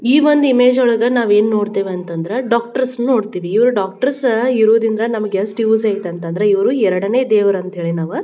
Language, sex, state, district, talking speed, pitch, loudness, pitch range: Kannada, female, Karnataka, Bijapur, 165 wpm, 220 Hz, -15 LUFS, 195-245 Hz